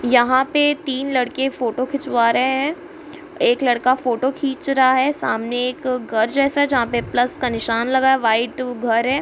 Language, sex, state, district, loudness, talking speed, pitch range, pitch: Hindi, female, Bihar, Muzaffarpur, -19 LUFS, 180 wpm, 245-275 Hz, 260 Hz